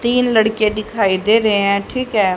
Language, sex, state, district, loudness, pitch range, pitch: Hindi, female, Haryana, Jhajjar, -16 LUFS, 200-225 Hz, 215 Hz